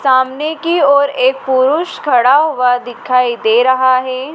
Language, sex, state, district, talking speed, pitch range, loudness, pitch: Hindi, female, Madhya Pradesh, Dhar, 150 wpm, 250-280 Hz, -13 LUFS, 260 Hz